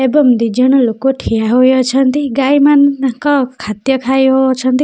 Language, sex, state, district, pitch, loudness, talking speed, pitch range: Odia, female, Odisha, Khordha, 265 Hz, -12 LUFS, 135 wpm, 255-275 Hz